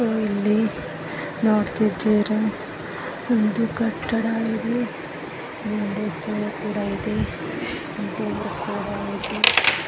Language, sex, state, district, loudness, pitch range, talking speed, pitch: Kannada, female, Karnataka, Raichur, -24 LUFS, 210-225 Hz, 55 wpm, 215 Hz